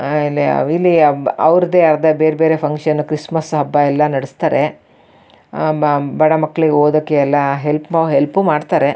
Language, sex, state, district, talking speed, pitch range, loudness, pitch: Kannada, female, Karnataka, Shimoga, 115 wpm, 145-160 Hz, -14 LUFS, 150 Hz